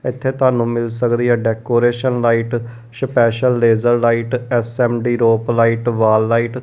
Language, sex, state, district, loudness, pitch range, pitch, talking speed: Punjabi, male, Punjab, Kapurthala, -16 LUFS, 115-120 Hz, 120 Hz, 145 wpm